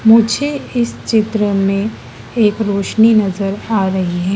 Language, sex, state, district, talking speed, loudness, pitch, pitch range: Hindi, female, Madhya Pradesh, Dhar, 140 wpm, -15 LUFS, 215 Hz, 195-225 Hz